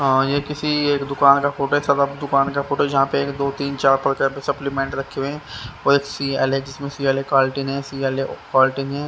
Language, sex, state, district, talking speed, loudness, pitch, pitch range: Hindi, male, Haryana, Rohtak, 160 wpm, -20 LUFS, 140 Hz, 135-140 Hz